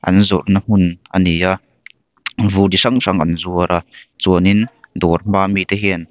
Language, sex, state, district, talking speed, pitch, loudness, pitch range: Mizo, male, Mizoram, Aizawl, 185 wpm, 95 Hz, -15 LUFS, 90-100 Hz